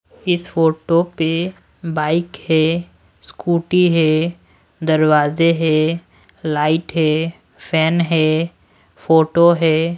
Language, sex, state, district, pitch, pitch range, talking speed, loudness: Hindi, male, Odisha, Sambalpur, 160 Hz, 155-170 Hz, 90 wpm, -17 LUFS